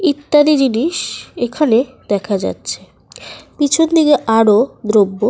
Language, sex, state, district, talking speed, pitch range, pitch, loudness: Bengali, female, Jharkhand, Sahebganj, 115 wpm, 220-300 Hz, 270 Hz, -15 LUFS